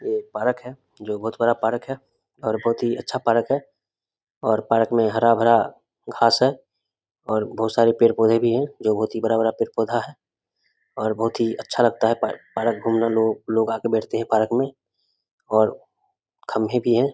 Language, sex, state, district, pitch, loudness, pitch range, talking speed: Hindi, male, Bihar, Samastipur, 115 Hz, -21 LUFS, 110-120 Hz, 195 wpm